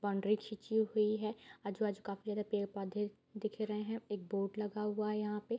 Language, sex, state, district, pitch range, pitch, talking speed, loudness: Hindi, female, Bihar, Bhagalpur, 205-215 Hz, 210 Hz, 195 wpm, -38 LUFS